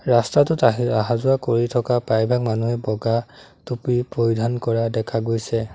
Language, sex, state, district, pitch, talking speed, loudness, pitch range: Assamese, male, Assam, Sonitpur, 120 Hz, 135 wpm, -21 LUFS, 115-125 Hz